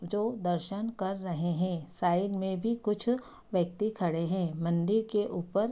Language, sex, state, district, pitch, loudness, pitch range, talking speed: Hindi, female, Bihar, Sitamarhi, 190 Hz, -31 LUFS, 175-210 Hz, 170 wpm